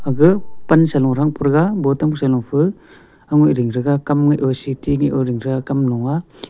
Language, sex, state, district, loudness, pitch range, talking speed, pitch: Wancho, male, Arunachal Pradesh, Longding, -17 LUFS, 135-150 Hz, 230 wpm, 145 Hz